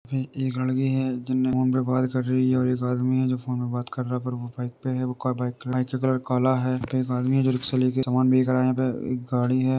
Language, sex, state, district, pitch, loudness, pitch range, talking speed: Hindi, male, Uttar Pradesh, Deoria, 130 Hz, -25 LUFS, 125-130 Hz, 300 wpm